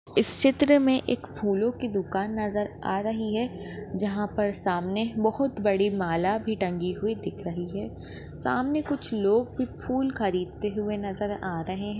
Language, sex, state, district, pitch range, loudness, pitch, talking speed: Hindi, female, Maharashtra, Nagpur, 195-230 Hz, -27 LUFS, 210 Hz, 170 wpm